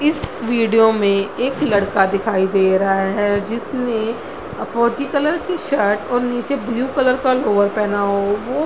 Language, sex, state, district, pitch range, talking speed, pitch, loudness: Hindi, female, Bihar, Madhepura, 200-255 Hz, 175 wpm, 225 Hz, -18 LUFS